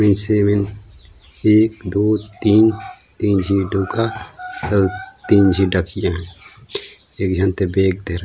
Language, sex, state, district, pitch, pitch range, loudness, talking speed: Chhattisgarhi, male, Chhattisgarh, Raigarh, 100 Hz, 95-110 Hz, -18 LUFS, 140 wpm